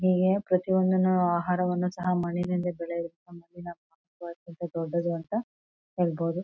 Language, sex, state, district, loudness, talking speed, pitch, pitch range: Kannada, female, Karnataka, Chamarajanagar, -28 LUFS, 85 wpm, 175 Hz, 170-180 Hz